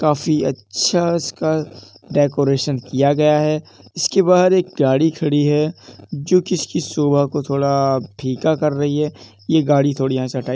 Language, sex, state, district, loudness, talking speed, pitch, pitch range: Hindi, male, Uttar Pradesh, Jalaun, -18 LUFS, 170 wpm, 145 Hz, 135-155 Hz